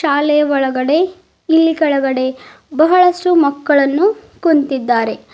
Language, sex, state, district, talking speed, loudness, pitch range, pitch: Kannada, female, Karnataka, Bidar, 80 wpm, -14 LUFS, 275-335 Hz, 295 Hz